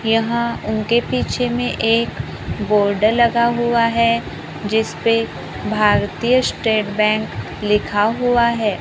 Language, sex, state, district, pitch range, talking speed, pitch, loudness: Hindi, female, Maharashtra, Gondia, 210-235 Hz, 110 wpm, 225 Hz, -18 LUFS